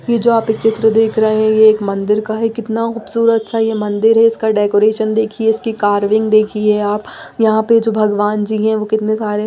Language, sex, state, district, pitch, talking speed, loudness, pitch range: Hindi, female, Odisha, Nuapada, 220 Hz, 220 wpm, -14 LUFS, 210-225 Hz